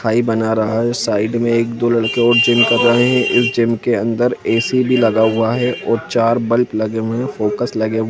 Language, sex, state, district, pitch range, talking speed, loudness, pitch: Hindi, male, Jharkhand, Sahebganj, 110-120 Hz, 230 wpm, -15 LUFS, 115 Hz